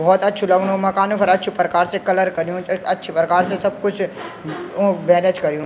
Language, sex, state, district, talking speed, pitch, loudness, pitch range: Garhwali, male, Uttarakhand, Tehri Garhwal, 200 wpm, 185 Hz, -18 LUFS, 175-195 Hz